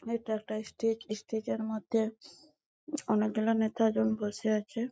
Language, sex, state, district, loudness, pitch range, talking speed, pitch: Bengali, female, West Bengal, Malda, -32 LUFS, 215-225 Hz, 160 wpm, 220 Hz